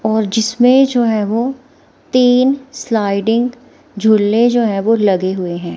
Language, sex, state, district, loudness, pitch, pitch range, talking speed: Hindi, female, Himachal Pradesh, Shimla, -14 LUFS, 225 Hz, 210-255 Hz, 145 wpm